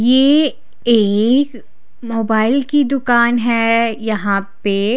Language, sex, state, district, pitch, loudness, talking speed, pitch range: Hindi, female, Odisha, Khordha, 230 Hz, -15 LUFS, 95 wpm, 220-255 Hz